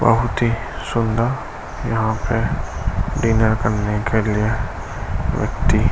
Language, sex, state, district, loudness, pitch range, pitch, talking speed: Hindi, male, Uttar Pradesh, Gorakhpur, -20 LUFS, 95-115 Hz, 110 Hz, 100 wpm